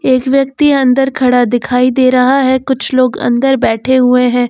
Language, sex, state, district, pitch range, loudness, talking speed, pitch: Hindi, female, Uttar Pradesh, Lucknow, 250-265 Hz, -11 LUFS, 185 wpm, 255 Hz